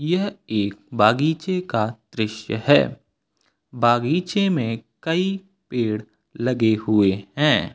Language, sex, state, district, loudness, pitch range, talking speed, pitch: Hindi, male, Uttar Pradesh, Lucknow, -22 LUFS, 110-165 Hz, 100 wpm, 120 Hz